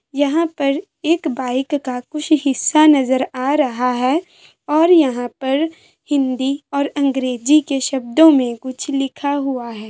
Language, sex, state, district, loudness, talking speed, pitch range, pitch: Hindi, female, Bihar, Gopalganj, -17 LUFS, 140 wpm, 260-300 Hz, 280 Hz